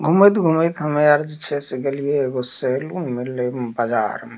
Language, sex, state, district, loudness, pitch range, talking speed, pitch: Maithili, male, Bihar, Darbhanga, -20 LUFS, 130-155 Hz, 180 wpm, 145 Hz